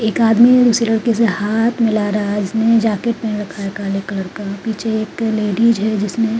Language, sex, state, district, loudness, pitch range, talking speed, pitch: Hindi, female, Uttarakhand, Tehri Garhwal, -16 LUFS, 205-230 Hz, 215 wpm, 220 Hz